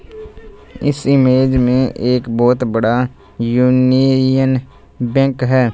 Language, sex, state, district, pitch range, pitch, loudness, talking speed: Hindi, male, Punjab, Fazilka, 125-130 Hz, 130 Hz, -15 LUFS, 95 wpm